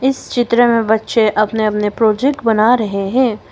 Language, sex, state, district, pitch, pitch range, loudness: Hindi, female, Arunachal Pradesh, Longding, 225 Hz, 215-240 Hz, -14 LUFS